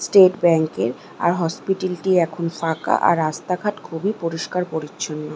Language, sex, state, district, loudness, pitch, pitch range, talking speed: Bengali, female, West Bengal, Malda, -21 LUFS, 170 Hz, 160-185 Hz, 145 wpm